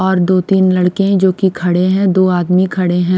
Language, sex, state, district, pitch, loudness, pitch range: Hindi, female, Himachal Pradesh, Shimla, 185 Hz, -13 LUFS, 180-190 Hz